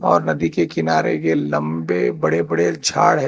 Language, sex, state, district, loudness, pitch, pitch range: Hindi, male, Telangana, Hyderabad, -19 LUFS, 80 Hz, 80-85 Hz